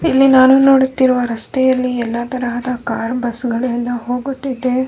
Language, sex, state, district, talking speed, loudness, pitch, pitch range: Kannada, female, Karnataka, Bellary, 135 wpm, -15 LUFS, 250 Hz, 240-260 Hz